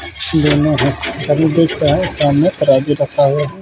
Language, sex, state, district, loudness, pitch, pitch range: Hindi, male, West Bengal, Purulia, -13 LUFS, 145 Hz, 140-150 Hz